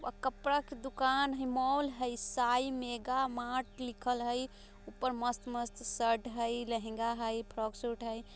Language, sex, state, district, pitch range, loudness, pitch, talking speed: Bajjika, female, Bihar, Vaishali, 235-260 Hz, -35 LUFS, 245 Hz, 145 wpm